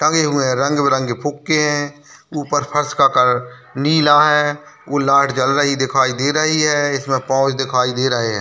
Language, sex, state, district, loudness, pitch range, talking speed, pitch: Hindi, male, Bihar, Jamui, -16 LUFS, 130-150 Hz, 185 wpm, 140 Hz